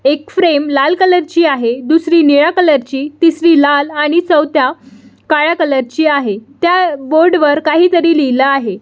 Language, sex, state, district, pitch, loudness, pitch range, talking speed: Marathi, female, Maharashtra, Solapur, 300 Hz, -11 LUFS, 275-335 Hz, 165 wpm